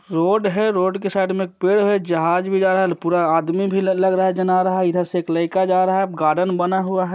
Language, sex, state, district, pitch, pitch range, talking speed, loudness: Hindi, male, Bihar, Jahanabad, 185 Hz, 175-190 Hz, 310 wpm, -19 LUFS